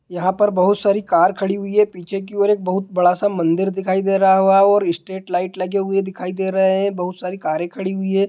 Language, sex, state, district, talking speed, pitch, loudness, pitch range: Hindi, male, Bihar, Sitamarhi, 260 wpm, 190 Hz, -18 LUFS, 185-195 Hz